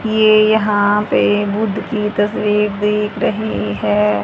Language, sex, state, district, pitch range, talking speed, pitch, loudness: Hindi, male, Haryana, Rohtak, 200-215 Hz, 125 wpm, 210 Hz, -15 LUFS